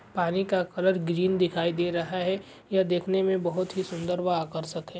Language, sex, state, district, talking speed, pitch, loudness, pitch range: Hindi, male, Chhattisgarh, Sukma, 205 wpm, 180 Hz, -27 LUFS, 170-190 Hz